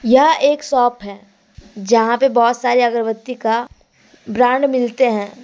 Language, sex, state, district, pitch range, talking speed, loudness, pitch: Hindi, female, Jharkhand, Deoghar, 225-255 Hz, 145 wpm, -16 LUFS, 240 Hz